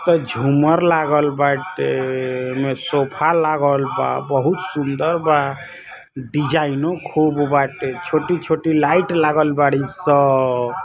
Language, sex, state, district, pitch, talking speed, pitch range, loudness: Bhojpuri, male, Uttar Pradesh, Ghazipur, 145 Hz, 105 wpm, 135-160 Hz, -18 LUFS